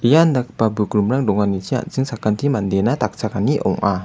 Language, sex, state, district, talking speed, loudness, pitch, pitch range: Garo, male, Meghalaya, West Garo Hills, 135 wpm, -19 LUFS, 110 Hz, 100-130 Hz